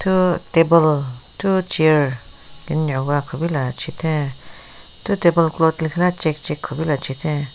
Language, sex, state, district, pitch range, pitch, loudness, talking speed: Rengma, female, Nagaland, Kohima, 145-170 Hz, 155 Hz, -19 LUFS, 120 wpm